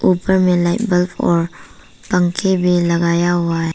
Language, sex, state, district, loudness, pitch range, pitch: Hindi, female, Arunachal Pradesh, Papum Pare, -16 LUFS, 170-180 Hz, 175 Hz